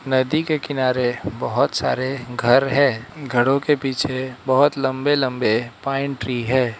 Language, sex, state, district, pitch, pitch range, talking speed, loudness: Hindi, male, Arunachal Pradesh, Lower Dibang Valley, 130 Hz, 125-140 Hz, 140 wpm, -20 LUFS